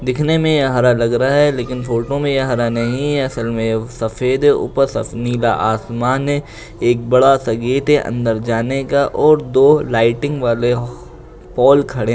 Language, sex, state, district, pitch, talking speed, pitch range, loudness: Hindi, male, Bihar, Lakhisarai, 125 Hz, 190 wpm, 115-135 Hz, -16 LUFS